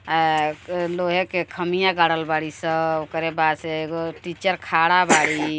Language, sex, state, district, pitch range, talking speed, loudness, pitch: Bhojpuri, female, Uttar Pradesh, Gorakhpur, 155-175 Hz, 150 wpm, -21 LUFS, 165 Hz